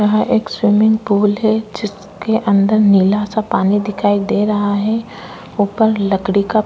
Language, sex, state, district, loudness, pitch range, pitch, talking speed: Hindi, female, Maharashtra, Chandrapur, -15 LUFS, 205-220 Hz, 210 Hz, 155 wpm